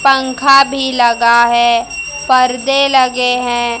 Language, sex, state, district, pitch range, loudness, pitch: Hindi, female, Haryana, Charkhi Dadri, 235-270 Hz, -11 LUFS, 250 Hz